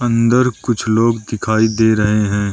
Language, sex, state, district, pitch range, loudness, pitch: Hindi, male, Arunachal Pradesh, Lower Dibang Valley, 105-115 Hz, -15 LUFS, 110 Hz